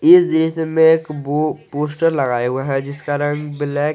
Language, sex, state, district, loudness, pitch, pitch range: Hindi, male, Jharkhand, Garhwa, -18 LUFS, 150 Hz, 145-160 Hz